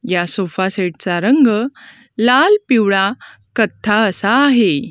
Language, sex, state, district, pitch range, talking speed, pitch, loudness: Marathi, female, Maharashtra, Gondia, 195-255 Hz, 120 wpm, 220 Hz, -15 LUFS